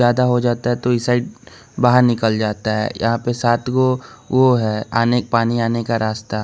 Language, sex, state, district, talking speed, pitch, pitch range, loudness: Hindi, male, Bihar, West Champaran, 215 wpm, 120 Hz, 115-125 Hz, -18 LUFS